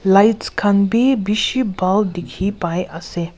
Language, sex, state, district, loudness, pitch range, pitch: Nagamese, female, Nagaland, Kohima, -18 LUFS, 180-210 Hz, 200 Hz